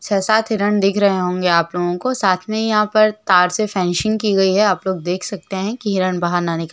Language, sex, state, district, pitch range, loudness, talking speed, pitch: Hindi, female, Jharkhand, Jamtara, 180-215 Hz, -17 LUFS, 260 wpm, 195 Hz